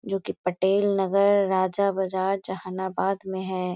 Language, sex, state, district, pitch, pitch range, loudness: Hindi, female, Bihar, Gaya, 190 Hz, 185-195 Hz, -25 LUFS